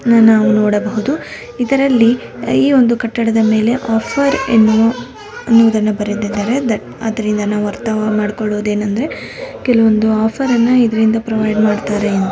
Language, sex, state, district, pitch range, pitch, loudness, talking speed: Kannada, female, Karnataka, Mysore, 215-240 Hz, 225 Hz, -14 LUFS, 100 wpm